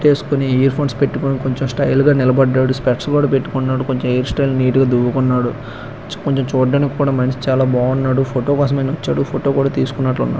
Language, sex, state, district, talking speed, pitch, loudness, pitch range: Telugu, male, Andhra Pradesh, Krishna, 125 wpm, 135 Hz, -16 LUFS, 130-140 Hz